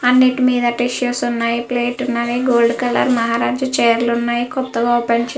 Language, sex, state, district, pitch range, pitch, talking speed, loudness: Telugu, female, Andhra Pradesh, Guntur, 235-250 Hz, 240 Hz, 155 wpm, -17 LUFS